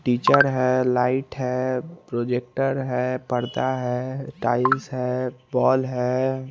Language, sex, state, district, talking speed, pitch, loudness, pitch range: Hindi, male, Chandigarh, Chandigarh, 110 wpm, 130 Hz, -23 LUFS, 125-130 Hz